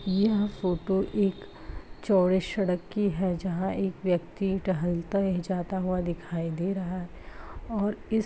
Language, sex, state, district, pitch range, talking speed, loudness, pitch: Hindi, female, Bihar, Araria, 180-195 Hz, 155 wpm, -28 LUFS, 190 Hz